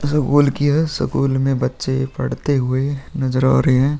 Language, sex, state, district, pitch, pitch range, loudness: Hindi, male, Bihar, Vaishali, 135 Hz, 130-145 Hz, -18 LUFS